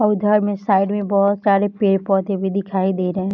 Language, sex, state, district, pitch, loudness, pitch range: Hindi, female, Bihar, Darbhanga, 200 Hz, -18 LUFS, 190-205 Hz